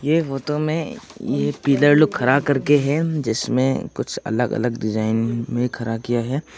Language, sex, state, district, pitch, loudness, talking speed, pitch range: Hindi, male, Arunachal Pradesh, Longding, 130 Hz, -20 LUFS, 165 wpm, 115-145 Hz